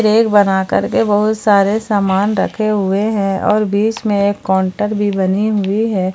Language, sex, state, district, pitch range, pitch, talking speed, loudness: Hindi, female, Jharkhand, Palamu, 195-215 Hz, 205 Hz, 175 wpm, -15 LUFS